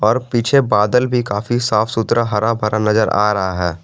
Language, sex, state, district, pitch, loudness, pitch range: Hindi, male, Jharkhand, Garhwa, 110 Hz, -16 LUFS, 105-120 Hz